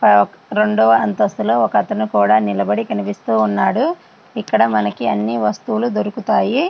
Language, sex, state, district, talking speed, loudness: Telugu, female, Andhra Pradesh, Srikakulam, 105 wpm, -17 LUFS